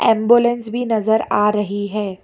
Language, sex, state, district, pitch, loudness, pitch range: Hindi, female, Karnataka, Bangalore, 220 Hz, -17 LUFS, 210-235 Hz